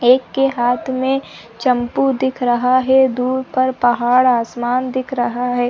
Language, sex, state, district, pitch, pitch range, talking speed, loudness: Hindi, female, Chhattisgarh, Sarguja, 255 Hz, 245-260 Hz, 170 wpm, -17 LUFS